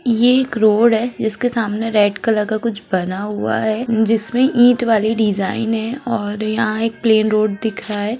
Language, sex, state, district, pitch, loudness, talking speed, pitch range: Hindi, female, Bihar, Begusarai, 220 Hz, -17 LUFS, 190 wpm, 215-230 Hz